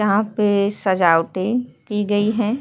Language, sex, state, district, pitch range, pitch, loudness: Hindi, female, Uttar Pradesh, Hamirpur, 200-215 Hz, 205 Hz, -19 LUFS